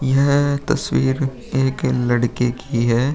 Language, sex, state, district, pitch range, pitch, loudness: Hindi, male, Uttar Pradesh, Muzaffarnagar, 125-140 Hz, 130 Hz, -19 LUFS